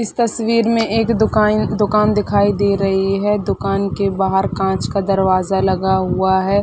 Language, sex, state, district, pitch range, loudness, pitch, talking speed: Hindi, female, Chhattisgarh, Sarguja, 190-210 Hz, -16 LUFS, 200 Hz, 170 wpm